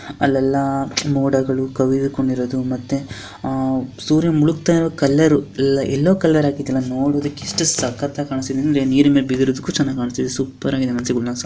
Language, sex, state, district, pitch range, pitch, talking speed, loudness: Kannada, female, Karnataka, Dharwad, 130-145 Hz, 135 Hz, 95 wpm, -18 LUFS